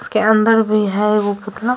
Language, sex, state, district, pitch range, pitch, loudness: Hindi, female, Bihar, Samastipur, 210-225 Hz, 215 Hz, -15 LUFS